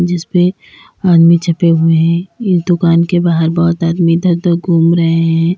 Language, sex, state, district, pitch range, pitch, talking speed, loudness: Hindi, female, Uttar Pradesh, Lalitpur, 165-175 Hz, 170 Hz, 170 wpm, -12 LUFS